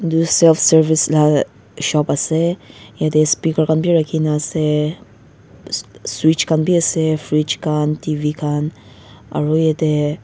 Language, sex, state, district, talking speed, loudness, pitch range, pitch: Nagamese, female, Nagaland, Dimapur, 125 wpm, -17 LUFS, 150-160 Hz, 155 Hz